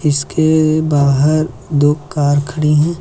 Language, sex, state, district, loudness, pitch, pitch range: Hindi, male, Uttar Pradesh, Lucknow, -14 LUFS, 150 Hz, 145-155 Hz